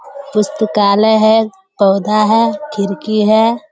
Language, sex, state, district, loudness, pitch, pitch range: Hindi, female, Bihar, Jamui, -13 LUFS, 215 Hz, 205-225 Hz